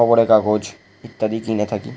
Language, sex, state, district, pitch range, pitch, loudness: Bengali, male, West Bengal, Jalpaiguri, 105-115 Hz, 110 Hz, -18 LUFS